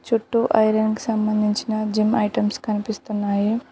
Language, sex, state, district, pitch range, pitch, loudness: Telugu, female, Telangana, Mahabubabad, 210-220 Hz, 215 Hz, -21 LUFS